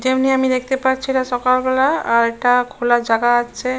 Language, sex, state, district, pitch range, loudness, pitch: Bengali, female, West Bengal, Jalpaiguri, 240-260 Hz, -17 LUFS, 255 Hz